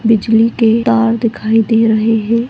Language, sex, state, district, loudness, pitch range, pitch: Hindi, female, Goa, North and South Goa, -12 LUFS, 225-230 Hz, 225 Hz